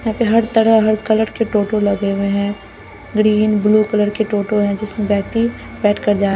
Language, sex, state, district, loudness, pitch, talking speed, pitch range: Hindi, female, Bihar, Katihar, -16 LUFS, 215 Hz, 215 wpm, 205-220 Hz